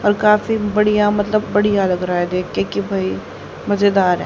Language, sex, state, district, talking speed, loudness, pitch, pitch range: Hindi, female, Haryana, Charkhi Dadri, 195 wpm, -17 LUFS, 200 Hz, 175-210 Hz